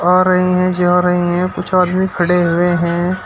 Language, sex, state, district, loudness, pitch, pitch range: Hindi, male, Uttar Pradesh, Shamli, -14 LUFS, 180 Hz, 175-185 Hz